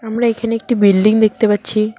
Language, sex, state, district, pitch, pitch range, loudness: Bengali, female, West Bengal, Cooch Behar, 220 Hz, 215-230 Hz, -14 LUFS